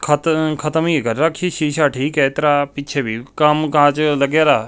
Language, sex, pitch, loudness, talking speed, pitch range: Punjabi, male, 150 Hz, -17 LUFS, 205 wpm, 140-155 Hz